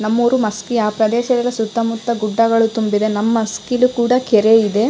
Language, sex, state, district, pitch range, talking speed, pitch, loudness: Kannada, female, Karnataka, Raichur, 215-240 Hz, 195 wpm, 225 Hz, -16 LUFS